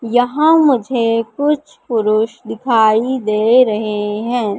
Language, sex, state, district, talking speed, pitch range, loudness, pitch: Hindi, female, Madhya Pradesh, Katni, 105 wpm, 215-255 Hz, -15 LUFS, 230 Hz